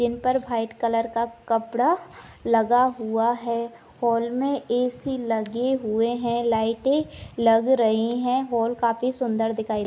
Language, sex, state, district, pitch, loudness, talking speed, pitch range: Hindi, female, Jharkhand, Jamtara, 235 Hz, -24 LUFS, 150 wpm, 230-250 Hz